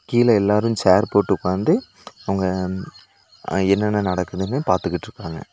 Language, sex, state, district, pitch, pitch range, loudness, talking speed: Tamil, male, Tamil Nadu, Nilgiris, 95 Hz, 95-105 Hz, -20 LUFS, 110 wpm